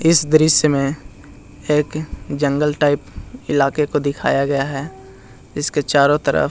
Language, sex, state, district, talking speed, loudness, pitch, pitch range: Hindi, male, Bihar, Jahanabad, 140 wpm, -18 LUFS, 140 Hz, 130-150 Hz